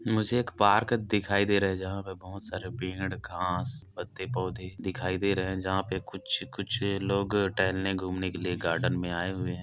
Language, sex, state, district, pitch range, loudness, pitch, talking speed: Hindi, male, Chhattisgarh, Korba, 95-100 Hz, -30 LUFS, 95 Hz, 205 wpm